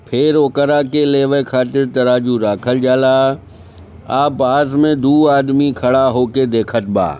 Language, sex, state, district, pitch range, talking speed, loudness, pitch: Bhojpuri, male, Bihar, Gopalganj, 125-140 Hz, 150 wpm, -14 LUFS, 130 Hz